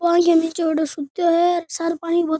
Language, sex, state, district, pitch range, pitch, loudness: Rajasthani, male, Rajasthan, Nagaur, 325-345 Hz, 335 Hz, -20 LUFS